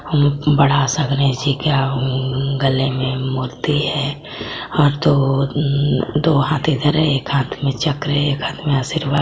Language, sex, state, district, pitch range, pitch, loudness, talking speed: Hindi, female, Jharkhand, Garhwa, 135-150 Hz, 140 Hz, -18 LUFS, 170 wpm